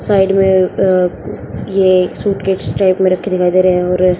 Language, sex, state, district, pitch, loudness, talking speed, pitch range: Hindi, female, Haryana, Jhajjar, 185 Hz, -13 LUFS, 185 wpm, 180-190 Hz